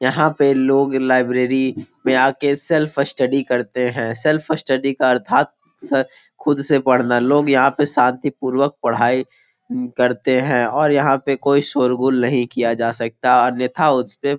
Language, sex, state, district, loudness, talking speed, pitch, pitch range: Hindi, male, Bihar, Gopalganj, -17 LUFS, 165 wpm, 130 Hz, 125-140 Hz